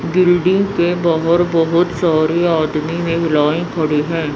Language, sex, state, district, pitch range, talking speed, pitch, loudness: Hindi, female, Chandigarh, Chandigarh, 155-175 Hz, 125 wpm, 165 Hz, -15 LUFS